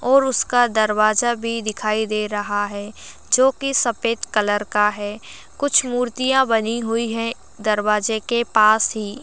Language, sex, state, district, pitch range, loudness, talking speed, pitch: Hindi, female, Uttar Pradesh, Gorakhpur, 210-245 Hz, -19 LUFS, 150 wpm, 225 Hz